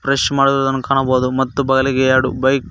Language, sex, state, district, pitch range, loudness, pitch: Kannada, male, Karnataka, Koppal, 130-135 Hz, -16 LUFS, 135 Hz